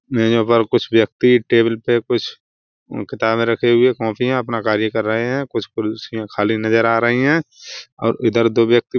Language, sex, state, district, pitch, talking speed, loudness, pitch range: Hindi, male, Uttar Pradesh, Budaun, 115 Hz, 195 wpm, -17 LUFS, 110-120 Hz